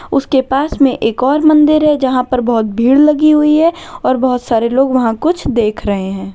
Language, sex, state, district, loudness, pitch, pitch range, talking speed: Hindi, female, Uttar Pradesh, Lalitpur, -12 LUFS, 265 Hz, 235-300 Hz, 205 wpm